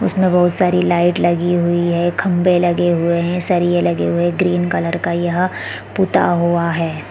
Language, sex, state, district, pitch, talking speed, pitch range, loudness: Hindi, female, Chhattisgarh, Bilaspur, 175 Hz, 185 wpm, 170-180 Hz, -16 LUFS